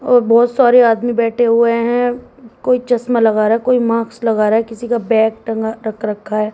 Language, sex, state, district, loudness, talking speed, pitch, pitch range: Hindi, female, Haryana, Jhajjar, -14 LUFS, 200 wpm, 230 Hz, 220-245 Hz